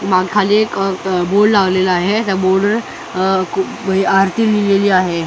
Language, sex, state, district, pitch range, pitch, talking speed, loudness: Marathi, male, Maharashtra, Mumbai Suburban, 185-205 Hz, 195 Hz, 180 wpm, -14 LUFS